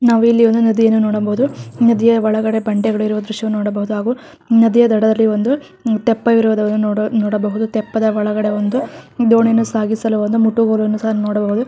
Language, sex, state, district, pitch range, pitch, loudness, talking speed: Kannada, female, Karnataka, Raichur, 215-230 Hz, 220 Hz, -15 LUFS, 140 wpm